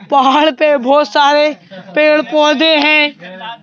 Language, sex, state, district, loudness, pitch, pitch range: Hindi, male, Madhya Pradesh, Bhopal, -11 LUFS, 295 Hz, 270-300 Hz